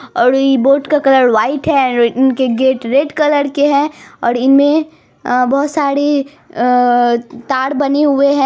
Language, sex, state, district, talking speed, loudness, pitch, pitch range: Hindi, female, Bihar, Araria, 165 wpm, -13 LUFS, 275 Hz, 250-290 Hz